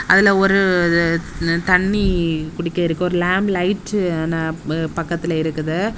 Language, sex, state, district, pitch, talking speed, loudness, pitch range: Tamil, female, Tamil Nadu, Kanyakumari, 175 Hz, 100 wpm, -18 LUFS, 165-190 Hz